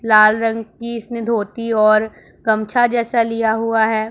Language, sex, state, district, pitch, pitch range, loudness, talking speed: Hindi, male, Punjab, Pathankot, 225 Hz, 215-230 Hz, -17 LUFS, 160 wpm